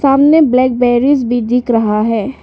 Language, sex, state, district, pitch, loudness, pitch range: Hindi, female, Arunachal Pradesh, Lower Dibang Valley, 250 Hz, -12 LUFS, 235-275 Hz